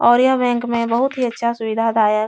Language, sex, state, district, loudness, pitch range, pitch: Hindi, female, Uttar Pradesh, Etah, -18 LUFS, 225-245 Hz, 235 Hz